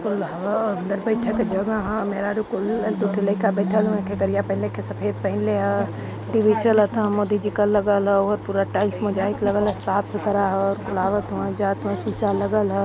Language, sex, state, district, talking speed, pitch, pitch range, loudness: Hindi, male, Uttar Pradesh, Varanasi, 200 wpm, 200 Hz, 180-210 Hz, -22 LUFS